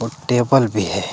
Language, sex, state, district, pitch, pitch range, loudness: Hindi, male, Jharkhand, Deoghar, 115 Hz, 105-130 Hz, -18 LUFS